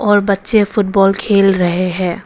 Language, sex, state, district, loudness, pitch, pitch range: Hindi, female, Arunachal Pradesh, Papum Pare, -13 LUFS, 200 Hz, 185-205 Hz